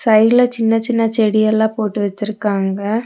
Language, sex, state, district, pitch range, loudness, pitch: Tamil, female, Tamil Nadu, Nilgiris, 210-225 Hz, -15 LUFS, 220 Hz